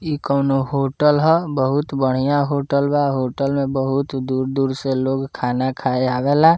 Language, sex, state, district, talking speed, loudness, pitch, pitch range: Bhojpuri, male, Bihar, Muzaffarpur, 155 wpm, -19 LUFS, 135 Hz, 130-145 Hz